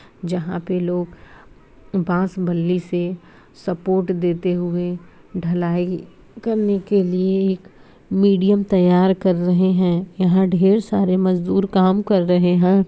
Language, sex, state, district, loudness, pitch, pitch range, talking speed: Hindi, female, Uttar Pradesh, Jyotiba Phule Nagar, -19 LUFS, 185 Hz, 180-190 Hz, 115 wpm